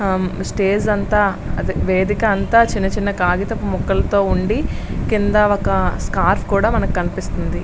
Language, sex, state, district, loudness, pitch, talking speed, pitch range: Telugu, female, Andhra Pradesh, Srikakulam, -18 LUFS, 200 Hz, 110 wpm, 195-210 Hz